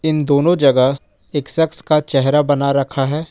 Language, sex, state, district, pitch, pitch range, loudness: Hindi, male, Jharkhand, Ranchi, 145 Hz, 140-155 Hz, -16 LUFS